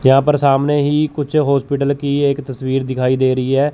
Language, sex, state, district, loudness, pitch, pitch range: Hindi, male, Chandigarh, Chandigarh, -16 LUFS, 140 Hz, 130-145 Hz